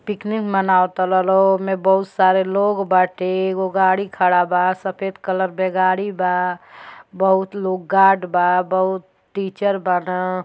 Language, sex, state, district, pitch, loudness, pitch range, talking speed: Bhojpuri, female, Uttar Pradesh, Gorakhpur, 190 Hz, -18 LUFS, 185-195 Hz, 145 wpm